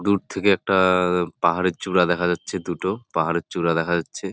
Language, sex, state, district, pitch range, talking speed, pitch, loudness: Bengali, male, West Bengal, Jalpaiguri, 85-95 Hz, 180 wpm, 90 Hz, -22 LUFS